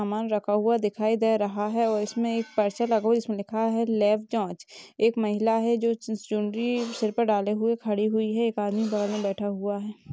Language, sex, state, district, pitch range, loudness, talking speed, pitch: Hindi, female, Chhattisgarh, Rajnandgaon, 210-230 Hz, -26 LUFS, 225 wpm, 215 Hz